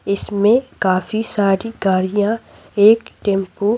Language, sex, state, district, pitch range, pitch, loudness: Hindi, female, Bihar, Patna, 195-220 Hz, 205 Hz, -17 LUFS